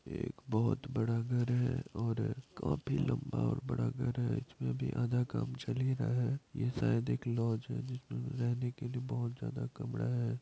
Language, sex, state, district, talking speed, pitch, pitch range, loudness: Hindi, male, Bihar, Madhepura, 190 wpm, 125 Hz, 115-125 Hz, -36 LUFS